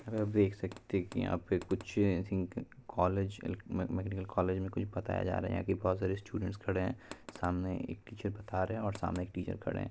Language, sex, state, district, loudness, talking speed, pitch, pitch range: Hindi, male, Bihar, Purnia, -36 LUFS, 235 wpm, 95 Hz, 90-100 Hz